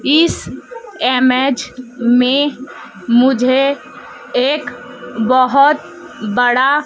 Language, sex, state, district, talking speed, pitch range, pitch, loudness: Hindi, female, Madhya Pradesh, Dhar, 60 wpm, 245-285 Hz, 255 Hz, -14 LUFS